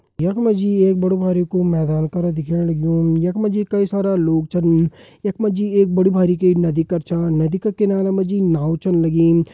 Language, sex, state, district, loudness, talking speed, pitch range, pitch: Hindi, male, Uttarakhand, Uttarkashi, -18 LUFS, 215 wpm, 165-195 Hz, 180 Hz